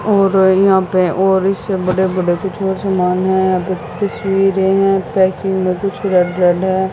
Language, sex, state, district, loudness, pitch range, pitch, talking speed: Hindi, female, Haryana, Jhajjar, -15 LUFS, 185-195 Hz, 190 Hz, 165 wpm